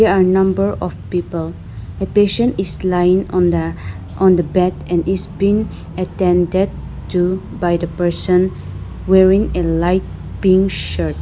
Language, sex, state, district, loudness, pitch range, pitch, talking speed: English, female, Nagaland, Dimapur, -16 LUFS, 170-190 Hz, 180 Hz, 145 wpm